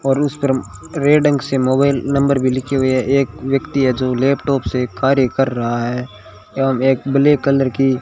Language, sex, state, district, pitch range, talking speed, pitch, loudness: Hindi, male, Rajasthan, Bikaner, 130-140 Hz, 200 wpm, 135 Hz, -16 LUFS